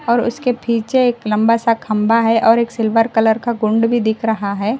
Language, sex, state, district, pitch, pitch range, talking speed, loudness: Hindi, female, Karnataka, Koppal, 230 Hz, 220-235 Hz, 225 wpm, -16 LUFS